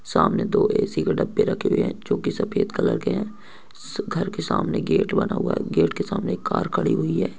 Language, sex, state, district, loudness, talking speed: Hindi, male, Jharkhand, Jamtara, -23 LUFS, 235 wpm